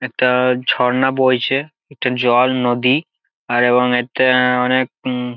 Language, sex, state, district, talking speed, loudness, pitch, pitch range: Bengali, male, West Bengal, Jalpaiguri, 145 wpm, -16 LUFS, 125 Hz, 125-130 Hz